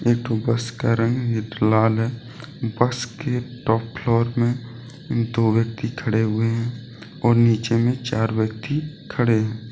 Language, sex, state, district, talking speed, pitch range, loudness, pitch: Hindi, male, Jharkhand, Deoghar, 150 wpm, 115-120 Hz, -22 LUFS, 115 Hz